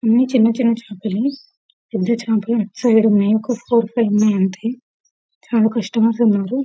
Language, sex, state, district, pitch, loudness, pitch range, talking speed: Telugu, female, Telangana, Karimnagar, 225 Hz, -17 LUFS, 215-235 Hz, 160 wpm